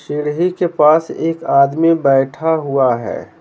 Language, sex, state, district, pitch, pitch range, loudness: Hindi, male, Bihar, Patna, 150 Hz, 140-165 Hz, -15 LUFS